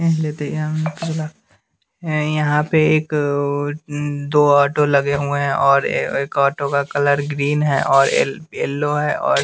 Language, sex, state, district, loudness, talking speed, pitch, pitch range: Hindi, male, Bihar, West Champaran, -18 LUFS, 125 wpm, 145 Hz, 140-150 Hz